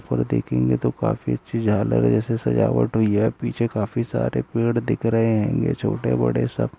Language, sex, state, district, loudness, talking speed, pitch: Hindi, male, Bihar, Jamui, -22 LUFS, 175 wpm, 100 Hz